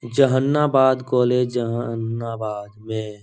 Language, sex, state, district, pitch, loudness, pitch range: Hindi, male, Bihar, Jahanabad, 120 Hz, -21 LUFS, 110-130 Hz